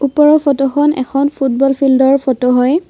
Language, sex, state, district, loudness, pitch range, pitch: Assamese, female, Assam, Kamrup Metropolitan, -12 LUFS, 265-290 Hz, 275 Hz